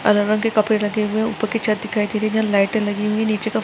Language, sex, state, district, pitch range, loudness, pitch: Hindi, female, Chhattisgarh, Sarguja, 210-220 Hz, -19 LUFS, 215 Hz